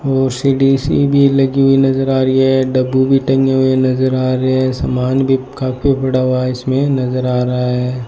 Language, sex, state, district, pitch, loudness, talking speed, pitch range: Hindi, male, Rajasthan, Bikaner, 130 Hz, -14 LUFS, 210 wpm, 130-135 Hz